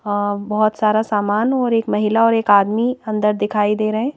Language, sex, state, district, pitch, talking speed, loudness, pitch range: Hindi, female, Madhya Pradesh, Bhopal, 215 Hz, 215 wpm, -17 LUFS, 210-225 Hz